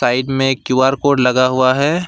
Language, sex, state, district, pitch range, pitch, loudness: Hindi, male, West Bengal, Alipurduar, 130-140 Hz, 130 Hz, -14 LUFS